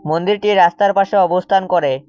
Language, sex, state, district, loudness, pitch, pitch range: Bengali, male, West Bengal, Cooch Behar, -15 LUFS, 185 Hz, 170-200 Hz